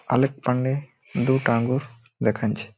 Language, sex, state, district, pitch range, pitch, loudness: Bengali, male, West Bengal, Malda, 115-130 Hz, 125 Hz, -24 LUFS